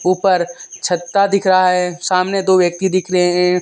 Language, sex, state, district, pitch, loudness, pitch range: Hindi, male, Jharkhand, Deoghar, 185 Hz, -15 LUFS, 180-190 Hz